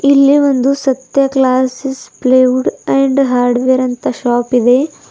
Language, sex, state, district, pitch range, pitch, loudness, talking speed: Kannada, female, Karnataka, Bidar, 255-275 Hz, 260 Hz, -12 LUFS, 130 wpm